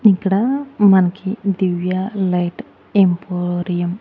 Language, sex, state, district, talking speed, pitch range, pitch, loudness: Telugu, female, Andhra Pradesh, Annamaya, 90 wpm, 180-200 Hz, 190 Hz, -18 LUFS